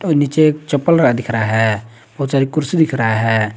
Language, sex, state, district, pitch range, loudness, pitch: Hindi, male, Jharkhand, Garhwa, 115-155 Hz, -16 LUFS, 135 Hz